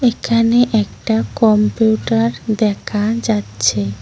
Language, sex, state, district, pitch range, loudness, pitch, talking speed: Bengali, female, West Bengal, Cooch Behar, 210-230 Hz, -16 LUFS, 220 Hz, 75 wpm